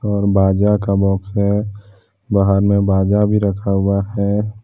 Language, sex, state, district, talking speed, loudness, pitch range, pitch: Hindi, male, Jharkhand, Deoghar, 155 wpm, -16 LUFS, 100-105 Hz, 100 Hz